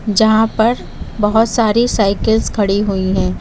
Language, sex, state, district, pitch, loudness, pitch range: Hindi, female, Uttar Pradesh, Lucknow, 220 Hz, -14 LUFS, 200-225 Hz